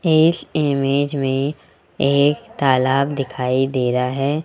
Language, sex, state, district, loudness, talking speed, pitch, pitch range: Hindi, male, Rajasthan, Jaipur, -19 LUFS, 120 wpm, 140 Hz, 135-150 Hz